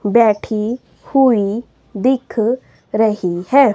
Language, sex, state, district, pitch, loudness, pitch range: Hindi, female, Himachal Pradesh, Shimla, 225 Hz, -17 LUFS, 210-250 Hz